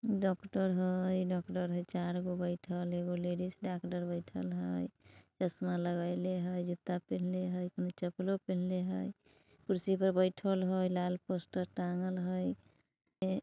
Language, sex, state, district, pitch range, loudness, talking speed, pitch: Bajjika, female, Bihar, Vaishali, 175-185 Hz, -36 LUFS, 140 wpm, 180 Hz